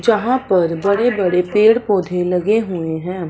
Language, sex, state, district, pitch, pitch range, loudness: Hindi, male, Punjab, Fazilka, 190 Hz, 180-220 Hz, -16 LUFS